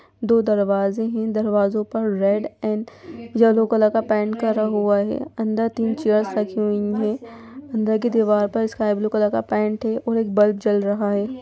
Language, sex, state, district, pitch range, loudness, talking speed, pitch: Hindi, female, Bihar, Gopalganj, 210-225 Hz, -21 LUFS, 190 wpm, 215 Hz